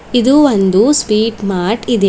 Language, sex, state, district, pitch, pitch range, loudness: Kannada, female, Karnataka, Bidar, 220 Hz, 200-245 Hz, -12 LUFS